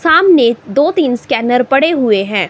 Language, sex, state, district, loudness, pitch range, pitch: Hindi, female, Himachal Pradesh, Shimla, -12 LUFS, 215-315 Hz, 250 Hz